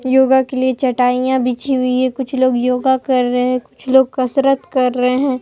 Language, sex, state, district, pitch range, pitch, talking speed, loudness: Hindi, female, Bihar, Katihar, 250-265 Hz, 260 Hz, 210 wpm, -15 LUFS